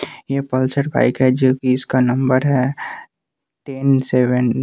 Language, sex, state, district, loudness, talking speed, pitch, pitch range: Hindi, male, Bihar, West Champaran, -17 LUFS, 145 wpm, 130 Hz, 130-135 Hz